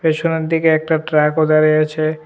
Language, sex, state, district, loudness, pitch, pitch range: Bengali, male, Tripura, West Tripura, -15 LUFS, 155 Hz, 155-160 Hz